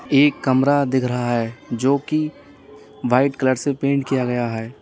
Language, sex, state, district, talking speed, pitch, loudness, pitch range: Hindi, male, Uttar Pradesh, Lalitpur, 175 wpm, 130 Hz, -20 LUFS, 125-140 Hz